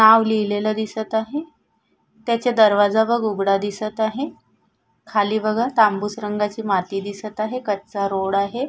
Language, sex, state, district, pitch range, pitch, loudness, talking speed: Marathi, female, Maharashtra, Sindhudurg, 205-220 Hz, 215 Hz, -21 LUFS, 140 wpm